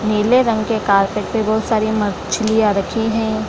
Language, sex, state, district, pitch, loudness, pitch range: Hindi, female, Bihar, Lakhisarai, 215 Hz, -17 LUFS, 210-225 Hz